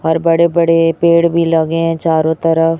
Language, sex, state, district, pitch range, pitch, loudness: Hindi, female, Chhattisgarh, Raipur, 165-170 Hz, 165 Hz, -13 LUFS